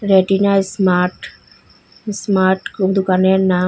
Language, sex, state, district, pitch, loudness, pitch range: Bengali, female, Assam, Hailakandi, 190 Hz, -16 LUFS, 185-195 Hz